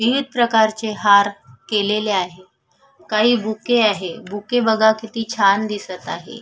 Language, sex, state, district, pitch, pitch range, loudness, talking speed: Marathi, female, Maharashtra, Solapur, 215 Hz, 200-230 Hz, -18 LUFS, 130 wpm